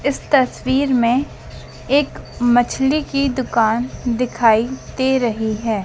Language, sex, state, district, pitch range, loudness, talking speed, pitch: Hindi, female, Madhya Pradesh, Dhar, 230-270 Hz, -18 LUFS, 115 wpm, 250 Hz